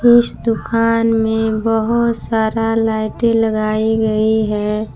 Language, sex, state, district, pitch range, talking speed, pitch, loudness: Hindi, female, Jharkhand, Palamu, 220-230 Hz, 110 wpm, 225 Hz, -16 LUFS